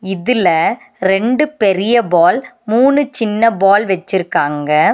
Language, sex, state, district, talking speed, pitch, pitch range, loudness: Tamil, female, Tamil Nadu, Nilgiris, 95 wpm, 210 Hz, 190-240 Hz, -14 LUFS